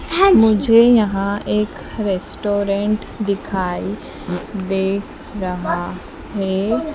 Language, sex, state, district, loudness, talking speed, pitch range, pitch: Hindi, female, Madhya Pradesh, Dhar, -18 LUFS, 70 wpm, 195-215 Hz, 200 Hz